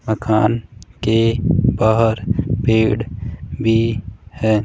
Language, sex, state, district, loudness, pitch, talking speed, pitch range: Hindi, male, Rajasthan, Jaipur, -18 LUFS, 110 Hz, 75 wpm, 110-115 Hz